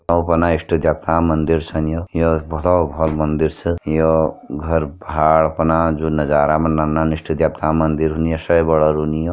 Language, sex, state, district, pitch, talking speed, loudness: Hindi, male, Uttarakhand, Uttarkashi, 80 Hz, 160 wpm, -17 LUFS